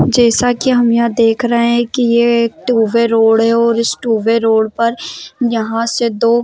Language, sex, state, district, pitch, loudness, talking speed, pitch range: Hindi, female, Maharashtra, Chandrapur, 235 Hz, -13 LUFS, 215 wpm, 230-240 Hz